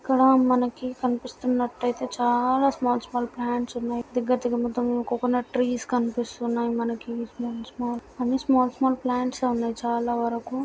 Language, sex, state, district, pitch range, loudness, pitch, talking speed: Telugu, female, Andhra Pradesh, Guntur, 240-250 Hz, -25 LUFS, 245 Hz, 140 wpm